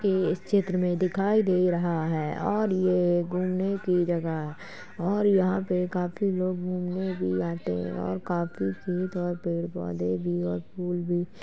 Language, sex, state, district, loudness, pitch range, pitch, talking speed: Hindi, male, Uttar Pradesh, Jalaun, -27 LUFS, 160-185 Hz, 180 Hz, 170 wpm